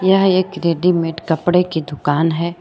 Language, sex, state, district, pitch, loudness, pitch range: Hindi, female, Jharkhand, Palamu, 170 Hz, -17 LUFS, 165-180 Hz